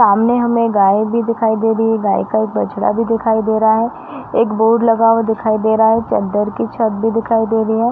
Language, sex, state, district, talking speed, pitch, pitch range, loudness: Hindi, female, Uttar Pradesh, Varanasi, 250 wpm, 225 Hz, 220-230 Hz, -15 LUFS